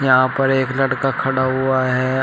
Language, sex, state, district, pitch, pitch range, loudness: Hindi, male, Uttar Pradesh, Shamli, 130 Hz, 130-135 Hz, -18 LUFS